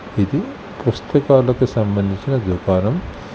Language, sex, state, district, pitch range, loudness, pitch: Telugu, male, Telangana, Hyderabad, 95-130 Hz, -18 LUFS, 110 Hz